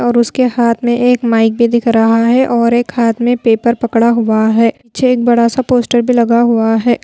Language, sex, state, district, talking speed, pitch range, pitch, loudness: Hindi, female, Bihar, Patna, 230 wpm, 230-240 Hz, 235 Hz, -12 LUFS